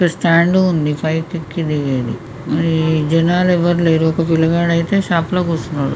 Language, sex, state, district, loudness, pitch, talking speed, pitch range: Telugu, female, Telangana, Karimnagar, -16 LUFS, 165 Hz, 130 wpm, 155-170 Hz